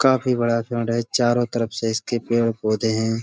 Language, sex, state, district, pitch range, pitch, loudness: Hindi, male, Uttar Pradesh, Budaun, 115-120 Hz, 115 Hz, -22 LUFS